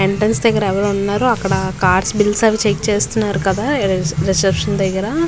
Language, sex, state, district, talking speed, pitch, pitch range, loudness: Telugu, female, Andhra Pradesh, Visakhapatnam, 135 wpm, 200 Hz, 190-215 Hz, -16 LUFS